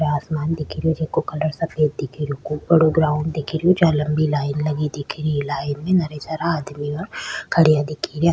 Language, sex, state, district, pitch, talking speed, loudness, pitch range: Rajasthani, female, Rajasthan, Churu, 155 Hz, 195 wpm, -21 LUFS, 150-160 Hz